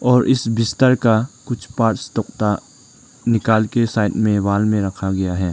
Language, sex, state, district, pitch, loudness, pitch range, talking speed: Hindi, male, Arunachal Pradesh, Lower Dibang Valley, 110 Hz, -18 LUFS, 105-120 Hz, 175 wpm